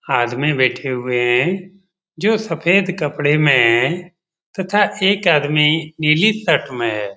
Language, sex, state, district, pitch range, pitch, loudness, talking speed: Hindi, male, Bihar, Jamui, 145-185 Hz, 165 Hz, -16 LUFS, 125 wpm